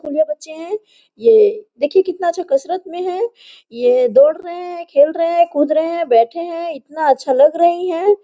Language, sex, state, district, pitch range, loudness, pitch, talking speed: Hindi, female, Jharkhand, Sahebganj, 295-360 Hz, -16 LUFS, 335 Hz, 205 wpm